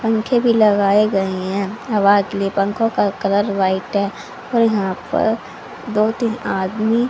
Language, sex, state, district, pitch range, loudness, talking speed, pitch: Hindi, female, Haryana, Charkhi Dadri, 195-225 Hz, -18 LUFS, 160 wpm, 205 Hz